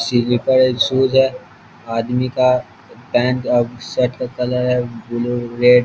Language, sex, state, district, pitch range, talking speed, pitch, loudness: Hindi, male, Bihar, East Champaran, 120-125 Hz, 155 wpm, 125 Hz, -17 LUFS